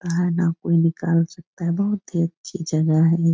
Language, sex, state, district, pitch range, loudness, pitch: Hindi, female, Bihar, Jahanabad, 165-175 Hz, -21 LUFS, 170 Hz